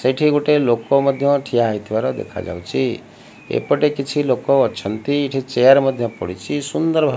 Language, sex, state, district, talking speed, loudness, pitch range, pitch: Odia, male, Odisha, Malkangiri, 160 wpm, -18 LUFS, 110-140 Hz, 135 Hz